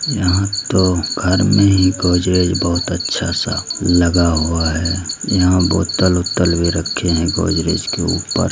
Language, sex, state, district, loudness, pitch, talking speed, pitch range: Hindi, male, Bihar, Begusarai, -16 LUFS, 90 Hz, 150 wpm, 85-95 Hz